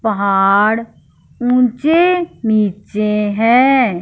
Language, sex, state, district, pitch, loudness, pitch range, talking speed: Hindi, female, Punjab, Fazilka, 220 Hz, -14 LUFS, 200-250 Hz, 60 wpm